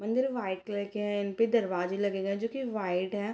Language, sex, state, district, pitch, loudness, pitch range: Hindi, female, Bihar, Purnia, 205 Hz, -31 LUFS, 195-230 Hz